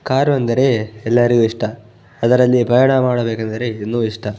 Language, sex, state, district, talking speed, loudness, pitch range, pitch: Kannada, male, Karnataka, Bellary, 135 wpm, -16 LUFS, 110-125 Hz, 120 Hz